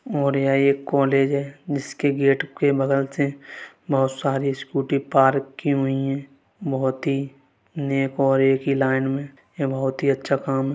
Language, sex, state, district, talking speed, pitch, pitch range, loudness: Hindi, male, Uttar Pradesh, Varanasi, 175 wpm, 135 Hz, 135-140 Hz, -22 LUFS